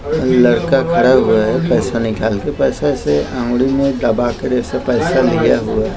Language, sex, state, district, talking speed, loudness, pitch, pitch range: Hindi, male, Maharashtra, Mumbai Suburban, 180 wpm, -15 LUFS, 125 Hz, 120-130 Hz